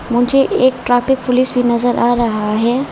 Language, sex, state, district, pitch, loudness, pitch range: Hindi, female, Arunachal Pradesh, Lower Dibang Valley, 245 Hz, -14 LUFS, 235-255 Hz